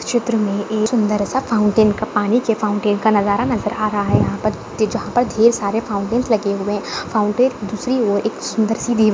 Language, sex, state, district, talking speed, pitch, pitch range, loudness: Hindi, female, Maharashtra, Chandrapur, 205 wpm, 215 Hz, 205-230 Hz, -18 LUFS